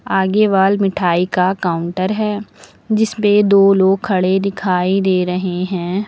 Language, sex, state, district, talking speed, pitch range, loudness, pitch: Hindi, female, Uttar Pradesh, Lucknow, 150 wpm, 180-200 Hz, -15 LUFS, 190 Hz